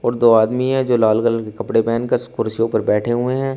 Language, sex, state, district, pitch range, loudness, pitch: Hindi, male, Uttar Pradesh, Shamli, 115-125 Hz, -17 LUFS, 115 Hz